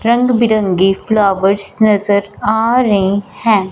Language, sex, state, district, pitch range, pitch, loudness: Hindi, female, Punjab, Fazilka, 195-225 Hz, 205 Hz, -13 LUFS